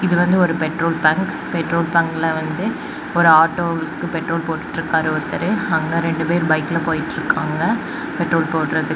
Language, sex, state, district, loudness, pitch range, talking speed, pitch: Tamil, female, Tamil Nadu, Kanyakumari, -19 LUFS, 160-170 Hz, 140 wpm, 165 Hz